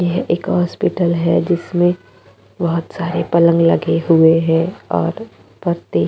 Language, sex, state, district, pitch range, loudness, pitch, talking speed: Hindi, female, Chhattisgarh, Jashpur, 115-175 Hz, -16 LUFS, 165 Hz, 130 wpm